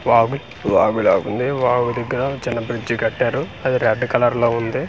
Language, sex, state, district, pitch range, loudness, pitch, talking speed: Telugu, male, Andhra Pradesh, Manyam, 115-125 Hz, -19 LUFS, 120 Hz, 145 wpm